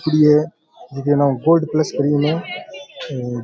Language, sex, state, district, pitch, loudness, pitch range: Rajasthani, male, Rajasthan, Churu, 150 Hz, -17 LUFS, 140-160 Hz